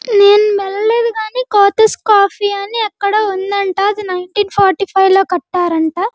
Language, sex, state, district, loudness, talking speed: Telugu, female, Andhra Pradesh, Guntur, -13 LUFS, 135 wpm